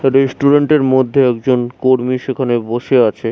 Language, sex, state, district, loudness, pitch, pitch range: Bengali, male, West Bengal, Jhargram, -14 LUFS, 130 Hz, 125-135 Hz